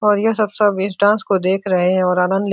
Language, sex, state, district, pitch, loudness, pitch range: Hindi, male, Bihar, Supaul, 195 Hz, -16 LUFS, 185-210 Hz